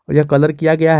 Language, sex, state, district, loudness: Hindi, male, Jharkhand, Garhwa, -14 LUFS